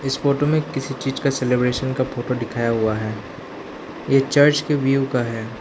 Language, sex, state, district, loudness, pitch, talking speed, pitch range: Hindi, male, Arunachal Pradesh, Lower Dibang Valley, -20 LUFS, 130 Hz, 180 wpm, 120-135 Hz